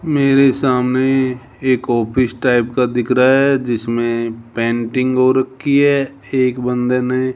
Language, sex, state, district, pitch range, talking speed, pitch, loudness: Hindi, male, Rajasthan, Jaipur, 120-130 Hz, 145 wpm, 125 Hz, -16 LUFS